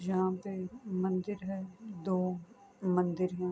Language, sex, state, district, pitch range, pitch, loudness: Urdu, female, Andhra Pradesh, Anantapur, 185-195 Hz, 185 Hz, -35 LUFS